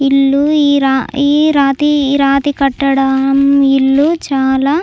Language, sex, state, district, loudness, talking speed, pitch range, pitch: Telugu, female, Andhra Pradesh, Chittoor, -11 LUFS, 125 wpm, 275-285 Hz, 275 Hz